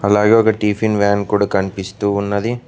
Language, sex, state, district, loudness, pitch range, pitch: Telugu, male, Telangana, Mahabubabad, -16 LUFS, 100-110 Hz, 100 Hz